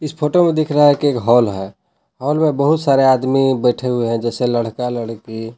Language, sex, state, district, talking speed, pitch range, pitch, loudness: Hindi, male, Jharkhand, Palamu, 215 wpm, 120-145 Hz, 130 Hz, -16 LUFS